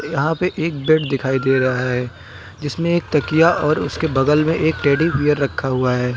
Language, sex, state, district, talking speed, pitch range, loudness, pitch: Hindi, male, Uttar Pradesh, Lucknow, 205 wpm, 130-160 Hz, -18 LUFS, 145 Hz